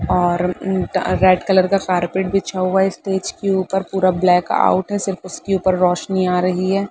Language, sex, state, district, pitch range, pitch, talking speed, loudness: Hindi, female, Uttar Pradesh, Gorakhpur, 180-195 Hz, 185 Hz, 200 wpm, -18 LUFS